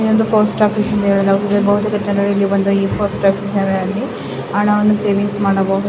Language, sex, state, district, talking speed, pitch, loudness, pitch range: Kannada, female, Karnataka, Bellary, 185 wpm, 200 Hz, -15 LUFS, 195-210 Hz